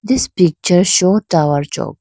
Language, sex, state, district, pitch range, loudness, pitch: English, female, Arunachal Pradesh, Lower Dibang Valley, 155-190 Hz, -14 LUFS, 180 Hz